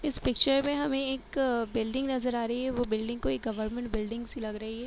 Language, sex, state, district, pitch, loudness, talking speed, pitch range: Hindi, female, Uttar Pradesh, Hamirpur, 240 Hz, -30 LUFS, 235 wpm, 225-265 Hz